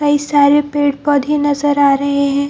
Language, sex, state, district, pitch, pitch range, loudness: Hindi, female, Bihar, Jamui, 285 Hz, 280-290 Hz, -14 LUFS